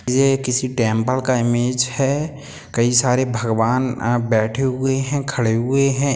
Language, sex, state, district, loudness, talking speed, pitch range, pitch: Hindi, male, Bihar, Sitamarhi, -19 LUFS, 145 wpm, 120-135 Hz, 130 Hz